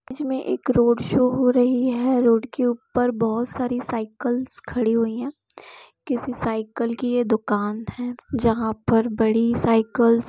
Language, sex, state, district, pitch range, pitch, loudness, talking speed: Hindi, female, Jharkhand, Jamtara, 230-250 Hz, 240 Hz, -22 LUFS, 155 wpm